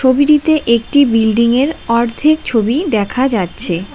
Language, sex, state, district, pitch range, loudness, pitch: Bengali, female, West Bengal, Cooch Behar, 225-285 Hz, -13 LUFS, 235 Hz